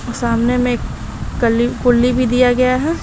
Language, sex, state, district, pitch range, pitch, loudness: Hindi, female, Bihar, Darbhanga, 240-250 Hz, 245 Hz, -15 LUFS